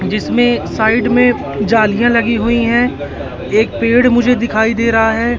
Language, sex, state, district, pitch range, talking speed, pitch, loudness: Hindi, male, Madhya Pradesh, Katni, 225-240 Hz, 155 wpm, 235 Hz, -13 LUFS